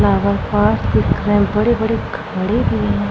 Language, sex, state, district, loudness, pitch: Hindi, female, Bihar, Vaishali, -17 LUFS, 110 Hz